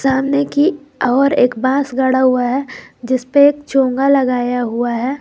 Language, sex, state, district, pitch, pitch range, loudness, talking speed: Hindi, female, Jharkhand, Garhwa, 265 Hz, 250-280 Hz, -15 LUFS, 175 wpm